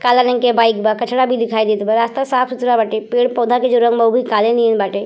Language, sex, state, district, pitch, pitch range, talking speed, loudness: Bhojpuri, female, Uttar Pradesh, Gorakhpur, 235 Hz, 220-245 Hz, 285 wpm, -15 LUFS